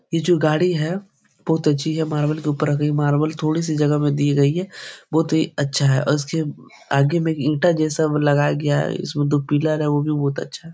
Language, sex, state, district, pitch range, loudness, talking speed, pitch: Hindi, male, Bihar, Jahanabad, 145-160 Hz, -20 LUFS, 235 wpm, 150 Hz